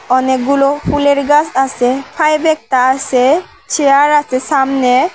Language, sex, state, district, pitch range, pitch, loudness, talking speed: Bengali, female, Tripura, West Tripura, 260-290 Hz, 275 Hz, -12 LUFS, 115 wpm